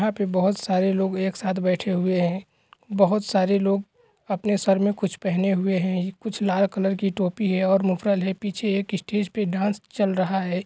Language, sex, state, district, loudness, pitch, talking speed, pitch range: Hindi, male, Bihar, East Champaran, -23 LUFS, 195 Hz, 210 wpm, 185-205 Hz